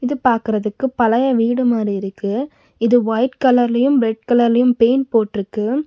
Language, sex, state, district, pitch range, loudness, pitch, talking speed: Tamil, female, Tamil Nadu, Nilgiris, 225-255 Hz, -17 LUFS, 240 Hz, 135 wpm